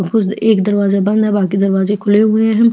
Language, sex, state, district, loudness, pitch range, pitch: Hindi, female, Chhattisgarh, Jashpur, -13 LUFS, 195-220 Hz, 205 Hz